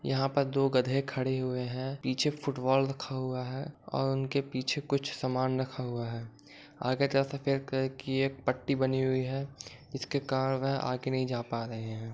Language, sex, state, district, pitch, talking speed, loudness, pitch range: Hindi, male, Andhra Pradesh, Guntur, 130 Hz, 200 wpm, -32 LUFS, 130-135 Hz